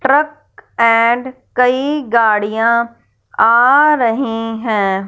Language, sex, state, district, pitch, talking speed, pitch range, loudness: Hindi, female, Punjab, Fazilka, 235 Hz, 85 wpm, 225-265 Hz, -13 LUFS